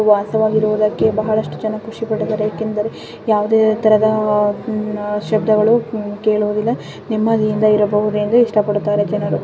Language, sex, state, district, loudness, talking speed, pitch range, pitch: Kannada, female, Karnataka, Shimoga, -17 LUFS, 90 wpm, 210-220 Hz, 215 Hz